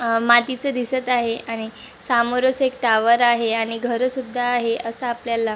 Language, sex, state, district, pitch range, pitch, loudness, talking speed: Marathi, male, Maharashtra, Chandrapur, 230-250 Hz, 240 Hz, -20 LUFS, 160 wpm